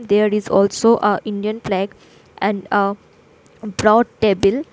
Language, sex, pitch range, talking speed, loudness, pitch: English, female, 200-215 Hz, 125 wpm, -17 LUFS, 210 Hz